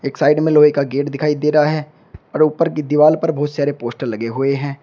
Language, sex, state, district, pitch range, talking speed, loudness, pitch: Hindi, male, Uttar Pradesh, Shamli, 140-150 Hz, 260 wpm, -16 LUFS, 150 Hz